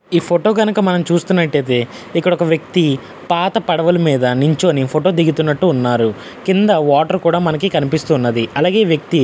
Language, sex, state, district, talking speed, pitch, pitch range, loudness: Telugu, male, Andhra Pradesh, Visakhapatnam, 150 wpm, 160 Hz, 140-175 Hz, -15 LUFS